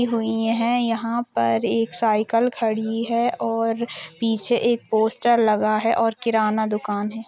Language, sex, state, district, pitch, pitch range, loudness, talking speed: Hindi, female, Chhattisgarh, Rajnandgaon, 225 Hz, 220-235 Hz, -21 LUFS, 150 wpm